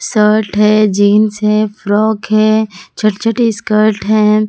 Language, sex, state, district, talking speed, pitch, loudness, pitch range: Hindi, female, Jharkhand, Palamu, 135 wpm, 215 Hz, -12 LUFS, 210-215 Hz